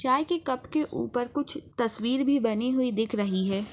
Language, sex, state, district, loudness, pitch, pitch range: Hindi, female, Maharashtra, Chandrapur, -28 LUFS, 255 Hz, 225-280 Hz